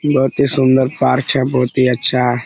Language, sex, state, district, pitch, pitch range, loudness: Hindi, male, Bihar, Saran, 130 Hz, 125-135 Hz, -14 LUFS